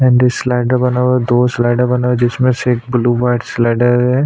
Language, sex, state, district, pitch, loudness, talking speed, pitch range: Hindi, male, Chhattisgarh, Sukma, 125 Hz, -14 LUFS, 225 wpm, 120-125 Hz